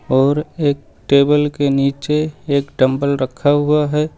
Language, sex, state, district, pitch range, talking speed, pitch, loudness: Hindi, male, Uttar Pradesh, Lucknow, 140-150 Hz, 145 wpm, 145 Hz, -16 LUFS